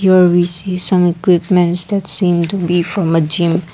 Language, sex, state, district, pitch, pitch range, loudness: English, female, Assam, Kamrup Metropolitan, 175 Hz, 175-185 Hz, -14 LUFS